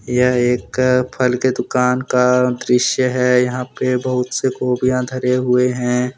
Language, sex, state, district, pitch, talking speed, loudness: Hindi, male, Jharkhand, Deoghar, 125 Hz, 155 wpm, -17 LUFS